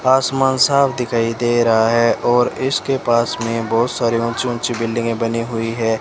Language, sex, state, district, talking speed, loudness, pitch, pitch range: Hindi, male, Rajasthan, Bikaner, 180 wpm, -17 LUFS, 115 Hz, 115-130 Hz